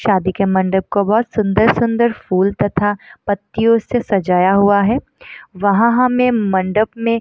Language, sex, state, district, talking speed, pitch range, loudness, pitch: Hindi, female, Bihar, Samastipur, 150 wpm, 195-230 Hz, -15 LUFS, 205 Hz